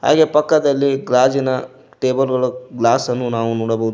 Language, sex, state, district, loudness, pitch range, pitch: Kannada, male, Karnataka, Koppal, -17 LUFS, 120-140 Hz, 130 Hz